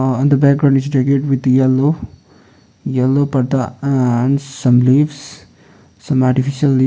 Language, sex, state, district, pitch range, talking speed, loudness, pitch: English, male, Sikkim, Gangtok, 130-140 Hz, 150 wpm, -15 LUFS, 135 Hz